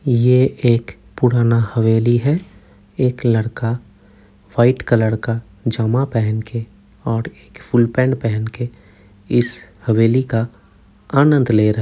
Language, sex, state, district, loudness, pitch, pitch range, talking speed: Hindi, male, Uttar Pradesh, Jyotiba Phule Nagar, -17 LUFS, 115 Hz, 100-120 Hz, 125 wpm